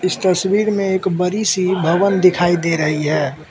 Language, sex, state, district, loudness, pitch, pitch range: Hindi, male, Mizoram, Aizawl, -16 LUFS, 185 Hz, 165-190 Hz